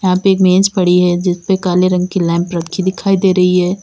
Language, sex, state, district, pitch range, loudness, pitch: Hindi, female, Uttar Pradesh, Lalitpur, 180-190 Hz, -13 LUFS, 185 Hz